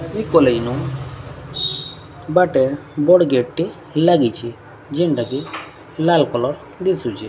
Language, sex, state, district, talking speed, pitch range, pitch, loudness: Odia, female, Odisha, Sambalpur, 105 wpm, 125-165 Hz, 140 Hz, -18 LUFS